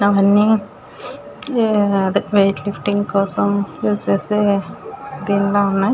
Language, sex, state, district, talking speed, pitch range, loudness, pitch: Telugu, female, Andhra Pradesh, Srikakulam, 90 wpm, 195-205 Hz, -17 LUFS, 200 Hz